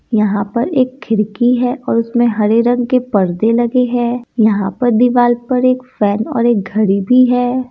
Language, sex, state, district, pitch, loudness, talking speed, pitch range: Hindi, female, Bihar, Gopalganj, 240 Hz, -14 LUFS, 180 wpm, 215-250 Hz